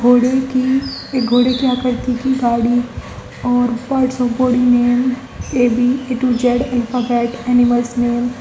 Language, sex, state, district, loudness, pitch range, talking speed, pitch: Hindi, female, Uttar Pradesh, Saharanpur, -16 LUFS, 245-255 Hz, 130 wpm, 245 Hz